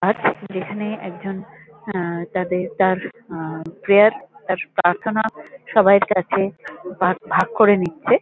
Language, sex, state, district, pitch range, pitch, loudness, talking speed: Bengali, female, West Bengal, North 24 Parganas, 175-205 Hz, 190 Hz, -20 LUFS, 125 wpm